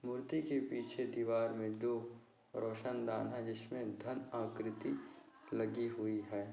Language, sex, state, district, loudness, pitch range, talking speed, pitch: Hindi, male, Maharashtra, Nagpur, -41 LUFS, 110-120 Hz, 130 wpm, 115 Hz